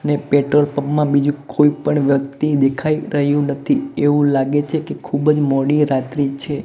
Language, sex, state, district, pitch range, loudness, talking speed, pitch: Gujarati, male, Gujarat, Gandhinagar, 140-150 Hz, -17 LUFS, 180 wpm, 145 Hz